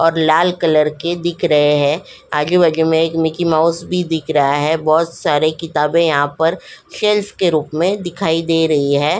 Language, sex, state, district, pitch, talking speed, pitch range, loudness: Hindi, female, Goa, North and South Goa, 160 Hz, 190 wpm, 150-170 Hz, -15 LUFS